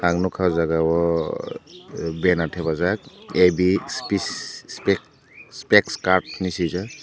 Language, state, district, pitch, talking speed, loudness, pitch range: Kokborok, Tripura, Dhalai, 90 Hz, 110 wpm, -22 LUFS, 85-95 Hz